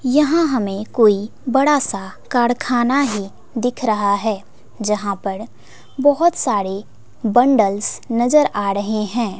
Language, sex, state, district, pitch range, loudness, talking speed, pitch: Hindi, female, Bihar, West Champaran, 205-260 Hz, -18 LUFS, 120 wpm, 225 Hz